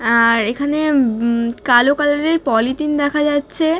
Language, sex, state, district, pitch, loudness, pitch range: Bengali, female, West Bengal, Dakshin Dinajpur, 280 Hz, -16 LUFS, 235-295 Hz